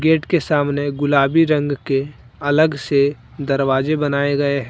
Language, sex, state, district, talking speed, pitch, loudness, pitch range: Hindi, male, Jharkhand, Deoghar, 155 wpm, 145 Hz, -18 LUFS, 140-150 Hz